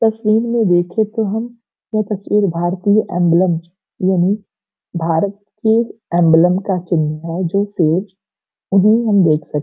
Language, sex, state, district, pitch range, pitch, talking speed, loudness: Hindi, female, Uttar Pradesh, Gorakhpur, 175-215 Hz, 195 Hz, 145 wpm, -16 LUFS